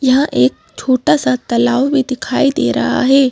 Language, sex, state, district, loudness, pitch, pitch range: Hindi, female, Madhya Pradesh, Bhopal, -14 LUFS, 260 Hz, 250-275 Hz